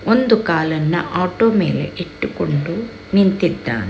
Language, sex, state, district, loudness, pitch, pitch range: Kannada, female, Karnataka, Dakshina Kannada, -18 LUFS, 180 Hz, 160-220 Hz